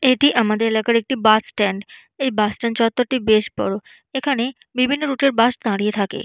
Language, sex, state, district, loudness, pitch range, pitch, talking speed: Bengali, female, West Bengal, Jalpaiguri, -19 LUFS, 215-260 Hz, 235 Hz, 190 wpm